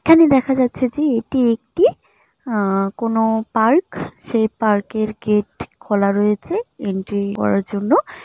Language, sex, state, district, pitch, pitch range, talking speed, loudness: Bengali, female, West Bengal, Jalpaiguri, 225 Hz, 205-265 Hz, 130 wpm, -18 LUFS